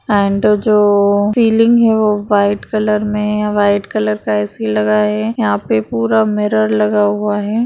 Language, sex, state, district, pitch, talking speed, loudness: Hindi, female, Bihar, Madhepura, 205 Hz, 165 wpm, -14 LUFS